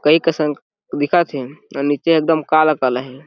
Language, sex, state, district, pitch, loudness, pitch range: Chhattisgarhi, male, Chhattisgarh, Jashpur, 155 Hz, -17 LUFS, 140-165 Hz